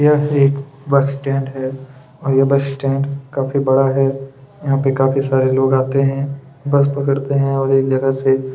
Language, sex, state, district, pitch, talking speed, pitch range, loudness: Hindi, male, Chhattisgarh, Kabirdham, 135 Hz, 180 wpm, 135-140 Hz, -17 LUFS